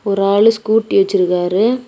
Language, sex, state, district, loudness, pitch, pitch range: Tamil, female, Tamil Nadu, Kanyakumari, -14 LUFS, 215 Hz, 195-230 Hz